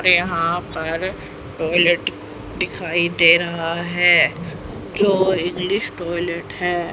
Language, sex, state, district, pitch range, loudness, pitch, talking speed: Hindi, female, Haryana, Jhajjar, 165-180 Hz, -19 LUFS, 175 Hz, 95 wpm